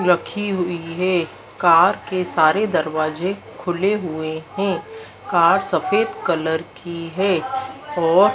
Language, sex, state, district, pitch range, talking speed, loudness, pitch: Hindi, female, Madhya Pradesh, Dhar, 165-200 Hz, 115 wpm, -20 LUFS, 175 Hz